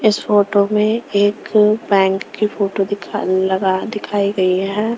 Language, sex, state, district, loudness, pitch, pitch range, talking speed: Hindi, female, Maharashtra, Mumbai Suburban, -17 LUFS, 205 Hz, 195-210 Hz, 155 wpm